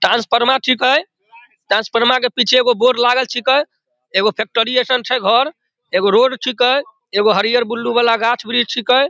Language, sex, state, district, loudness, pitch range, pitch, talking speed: Maithili, male, Bihar, Samastipur, -15 LUFS, 235-255 Hz, 245 Hz, 145 wpm